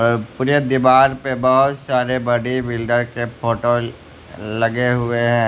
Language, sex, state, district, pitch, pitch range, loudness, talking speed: Hindi, male, Bihar, West Champaran, 120 Hz, 115-130 Hz, -18 LUFS, 145 wpm